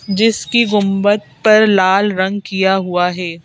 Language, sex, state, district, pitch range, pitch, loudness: Hindi, female, Madhya Pradesh, Bhopal, 185-210 Hz, 195 Hz, -14 LUFS